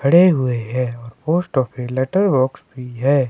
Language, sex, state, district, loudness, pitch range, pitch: Hindi, male, Himachal Pradesh, Shimla, -18 LUFS, 125-150 Hz, 130 Hz